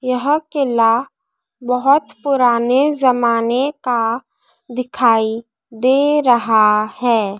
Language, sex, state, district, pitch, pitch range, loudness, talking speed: Hindi, female, Madhya Pradesh, Dhar, 250 Hz, 230-280 Hz, -16 LUFS, 80 wpm